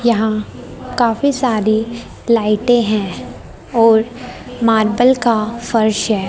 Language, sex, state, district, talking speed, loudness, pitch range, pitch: Hindi, female, Haryana, Rohtak, 95 wpm, -15 LUFS, 215-240 Hz, 225 Hz